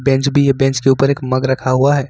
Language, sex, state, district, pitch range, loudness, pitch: Hindi, male, Jharkhand, Ranchi, 130-140 Hz, -14 LUFS, 135 Hz